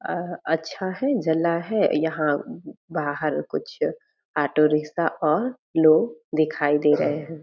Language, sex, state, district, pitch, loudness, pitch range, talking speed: Hindi, female, Bihar, Purnia, 160 Hz, -23 LUFS, 150-190 Hz, 145 wpm